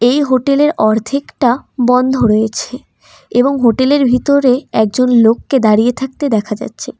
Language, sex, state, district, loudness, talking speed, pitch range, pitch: Bengali, female, West Bengal, Cooch Behar, -13 LUFS, 135 wpm, 230-270 Hz, 255 Hz